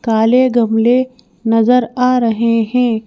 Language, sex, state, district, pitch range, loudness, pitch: Hindi, female, Madhya Pradesh, Bhopal, 225-250 Hz, -13 LUFS, 235 Hz